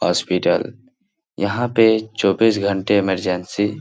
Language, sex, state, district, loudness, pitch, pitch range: Hindi, male, Bihar, Jahanabad, -18 LUFS, 105 Hz, 100-115 Hz